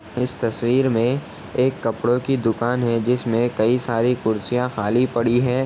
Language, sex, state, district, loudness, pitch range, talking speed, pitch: Hindi, male, Uttar Pradesh, Etah, -21 LUFS, 115-125 Hz, 160 wpm, 120 Hz